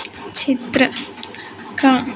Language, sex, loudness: Hindi, female, -19 LUFS